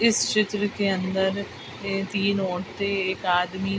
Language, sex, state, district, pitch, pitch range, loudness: Hindi, female, Bihar, Araria, 195 Hz, 190-200 Hz, -25 LUFS